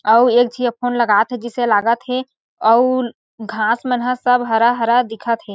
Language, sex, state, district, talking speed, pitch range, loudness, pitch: Chhattisgarhi, female, Chhattisgarh, Sarguja, 195 wpm, 225-245 Hz, -16 LUFS, 240 Hz